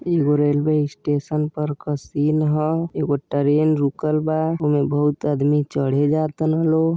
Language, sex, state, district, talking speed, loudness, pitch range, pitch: Bhojpuri, male, Uttar Pradesh, Deoria, 170 wpm, -20 LUFS, 145-155 Hz, 150 Hz